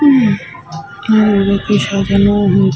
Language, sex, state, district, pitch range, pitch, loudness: Bengali, female, Jharkhand, Sahebganj, 190-205 Hz, 200 Hz, -13 LUFS